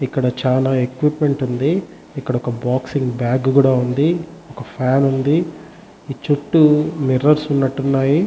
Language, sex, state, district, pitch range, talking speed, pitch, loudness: Telugu, male, Andhra Pradesh, Chittoor, 130-150 Hz, 130 wpm, 135 Hz, -17 LUFS